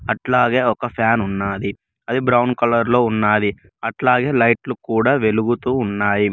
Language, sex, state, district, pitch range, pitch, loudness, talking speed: Telugu, male, Telangana, Mahabubabad, 105-125 Hz, 115 Hz, -18 LUFS, 130 wpm